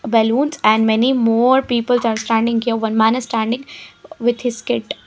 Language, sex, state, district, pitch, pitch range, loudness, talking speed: English, female, Haryana, Jhajjar, 235 Hz, 225-250 Hz, -17 LUFS, 180 wpm